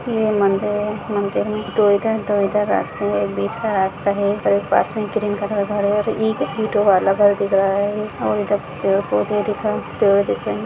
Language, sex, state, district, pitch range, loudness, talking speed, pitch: Hindi, female, Bihar, Jamui, 200-210 Hz, -19 LUFS, 245 wpm, 205 Hz